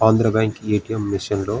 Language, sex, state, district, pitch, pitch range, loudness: Telugu, male, Andhra Pradesh, Srikakulam, 110 Hz, 105-110 Hz, -21 LUFS